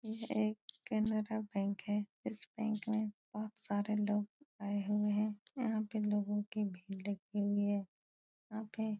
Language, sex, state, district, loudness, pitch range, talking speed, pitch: Hindi, female, Uttar Pradesh, Etah, -38 LUFS, 205-220 Hz, 165 wpm, 210 Hz